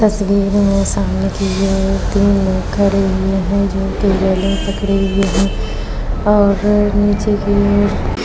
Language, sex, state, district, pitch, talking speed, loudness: Hindi, female, Maharashtra, Chandrapur, 195 Hz, 145 wpm, -15 LUFS